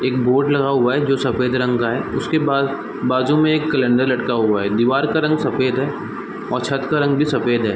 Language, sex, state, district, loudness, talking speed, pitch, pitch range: Hindi, male, Chhattisgarh, Raigarh, -18 LUFS, 240 wpm, 130 Hz, 125-145 Hz